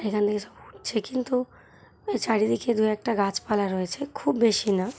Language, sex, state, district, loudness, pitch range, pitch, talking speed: Bengali, female, West Bengal, Malda, -26 LUFS, 205-235 Hz, 215 Hz, 130 wpm